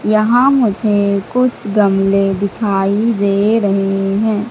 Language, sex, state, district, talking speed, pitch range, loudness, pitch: Hindi, female, Madhya Pradesh, Katni, 105 wpm, 195-220 Hz, -14 LUFS, 205 Hz